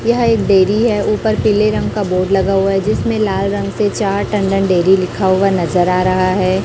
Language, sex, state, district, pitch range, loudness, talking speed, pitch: Hindi, female, Chhattisgarh, Raipur, 190-210 Hz, -14 LUFS, 225 wpm, 195 Hz